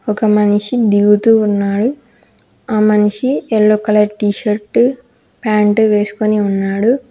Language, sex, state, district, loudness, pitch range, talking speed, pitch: Telugu, female, Telangana, Hyderabad, -13 LUFS, 210-230 Hz, 110 wpm, 215 Hz